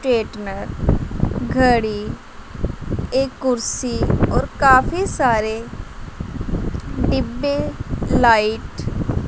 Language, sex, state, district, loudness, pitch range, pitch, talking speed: Hindi, female, Punjab, Pathankot, -20 LUFS, 220-265 Hz, 245 Hz, 65 wpm